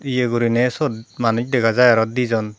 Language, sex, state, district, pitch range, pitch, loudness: Chakma, female, Tripura, Dhalai, 115-125 Hz, 120 Hz, -18 LUFS